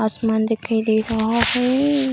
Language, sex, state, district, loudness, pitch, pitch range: Hindi, female, Bihar, Darbhanga, -19 LUFS, 225 Hz, 220-250 Hz